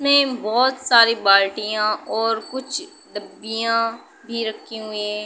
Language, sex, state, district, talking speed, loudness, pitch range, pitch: Hindi, female, Uttar Pradesh, Budaun, 135 wpm, -20 LUFS, 215-255 Hz, 225 Hz